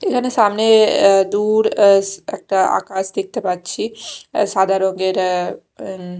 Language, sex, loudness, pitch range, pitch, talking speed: Bengali, female, -16 LUFS, 190-215 Hz, 195 Hz, 125 wpm